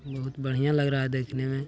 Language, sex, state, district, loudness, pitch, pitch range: Hindi, male, Bihar, Jahanabad, -28 LUFS, 135 Hz, 130-140 Hz